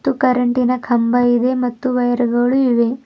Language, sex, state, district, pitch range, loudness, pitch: Kannada, female, Karnataka, Bidar, 240-255 Hz, -16 LUFS, 245 Hz